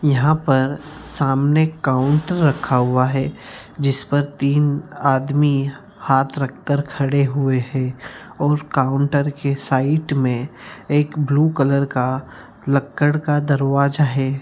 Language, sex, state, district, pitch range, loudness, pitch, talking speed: Hindi, male, Bihar, Jamui, 135-145 Hz, -19 LUFS, 140 Hz, 125 wpm